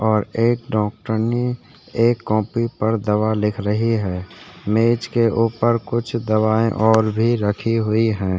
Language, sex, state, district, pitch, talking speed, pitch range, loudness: Hindi, male, Chhattisgarh, Sukma, 110 Hz, 145 wpm, 105-115 Hz, -19 LUFS